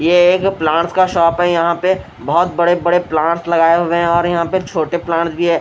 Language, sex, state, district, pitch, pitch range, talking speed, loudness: Hindi, male, Bihar, Katihar, 170 Hz, 170-175 Hz, 235 wpm, -15 LUFS